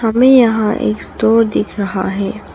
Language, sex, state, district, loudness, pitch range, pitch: Hindi, female, Arunachal Pradesh, Papum Pare, -14 LUFS, 190-225 Hz, 215 Hz